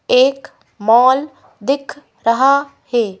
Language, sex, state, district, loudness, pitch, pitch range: Hindi, female, Madhya Pradesh, Bhopal, -15 LUFS, 255 Hz, 230-275 Hz